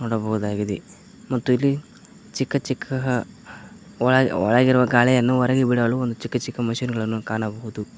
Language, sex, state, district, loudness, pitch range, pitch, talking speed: Kannada, male, Karnataka, Koppal, -22 LUFS, 115-130 Hz, 125 Hz, 115 wpm